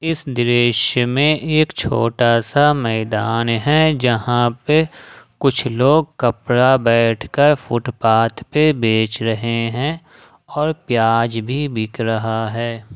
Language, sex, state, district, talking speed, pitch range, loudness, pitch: Hindi, male, Jharkhand, Ranchi, 120 wpm, 115-145 Hz, -17 LUFS, 120 Hz